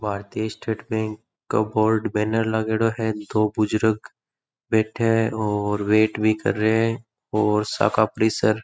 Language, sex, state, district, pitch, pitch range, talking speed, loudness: Rajasthani, male, Rajasthan, Churu, 110 Hz, 105-110 Hz, 145 wpm, -22 LUFS